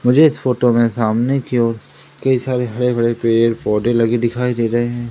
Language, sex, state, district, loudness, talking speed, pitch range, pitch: Hindi, male, Madhya Pradesh, Umaria, -16 LUFS, 210 wpm, 115-125 Hz, 120 Hz